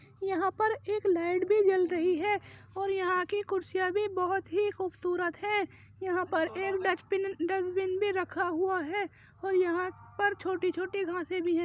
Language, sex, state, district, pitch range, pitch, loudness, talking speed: Hindi, female, Uttar Pradesh, Jyotiba Phule Nagar, 360-390 Hz, 375 Hz, -31 LUFS, 170 wpm